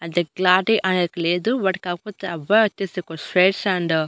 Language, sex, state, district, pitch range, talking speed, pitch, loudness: Telugu, female, Andhra Pradesh, Annamaya, 175-195 Hz, 175 wpm, 185 Hz, -21 LUFS